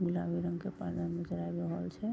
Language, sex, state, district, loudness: Maithili, female, Bihar, Vaishali, -37 LUFS